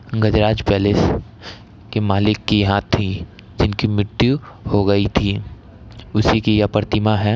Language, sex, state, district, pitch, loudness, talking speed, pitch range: Maithili, male, Bihar, Samastipur, 105 Hz, -18 LUFS, 140 wpm, 100-110 Hz